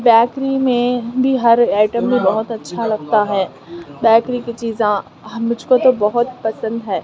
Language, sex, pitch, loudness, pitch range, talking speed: Hindi, female, 235 Hz, -16 LUFS, 220-250 Hz, 160 wpm